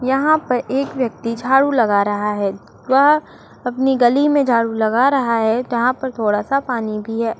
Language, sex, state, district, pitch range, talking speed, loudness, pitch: Hindi, female, Uttar Pradesh, Muzaffarnagar, 225-270 Hz, 185 wpm, -17 LUFS, 245 Hz